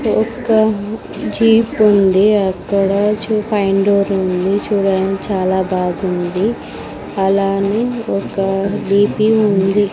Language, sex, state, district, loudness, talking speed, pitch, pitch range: Telugu, female, Andhra Pradesh, Sri Satya Sai, -15 LUFS, 90 wpm, 200 Hz, 195-215 Hz